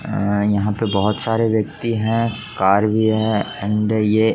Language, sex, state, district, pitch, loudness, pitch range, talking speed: Hindi, male, Jharkhand, Jamtara, 110 Hz, -19 LUFS, 105-110 Hz, 165 wpm